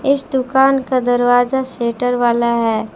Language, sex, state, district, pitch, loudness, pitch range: Hindi, female, Jharkhand, Palamu, 245 Hz, -15 LUFS, 235-265 Hz